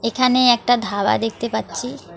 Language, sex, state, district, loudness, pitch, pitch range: Bengali, female, West Bengal, Alipurduar, -18 LUFS, 235 Hz, 225-245 Hz